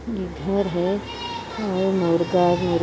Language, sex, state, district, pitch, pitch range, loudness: Hindi, female, Chhattisgarh, Jashpur, 185 Hz, 175-195 Hz, -23 LUFS